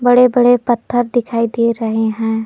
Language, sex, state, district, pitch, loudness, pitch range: Hindi, female, Jharkhand, Palamu, 235 Hz, -15 LUFS, 225-245 Hz